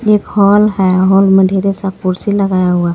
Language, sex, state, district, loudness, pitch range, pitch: Hindi, female, Jharkhand, Garhwa, -11 LUFS, 185-200 Hz, 195 Hz